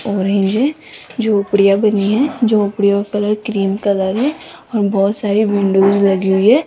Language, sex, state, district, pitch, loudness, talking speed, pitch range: Hindi, female, Rajasthan, Jaipur, 205 Hz, -15 LUFS, 160 wpm, 200-215 Hz